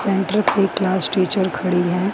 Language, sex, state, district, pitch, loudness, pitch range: Hindi, female, Jharkhand, Ranchi, 190 Hz, -19 LUFS, 185-200 Hz